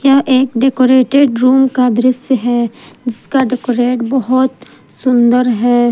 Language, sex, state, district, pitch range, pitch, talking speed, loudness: Hindi, female, Jharkhand, Palamu, 245-260 Hz, 255 Hz, 120 wpm, -12 LUFS